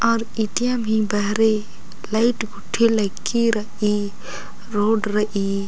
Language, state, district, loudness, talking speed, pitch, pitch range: Kurukh, Chhattisgarh, Jashpur, -21 LUFS, 105 wpm, 215 Hz, 205-225 Hz